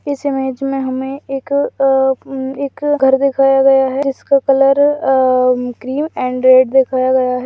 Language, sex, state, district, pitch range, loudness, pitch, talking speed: Hindi, female, Rajasthan, Churu, 260-275 Hz, -14 LUFS, 270 Hz, 130 wpm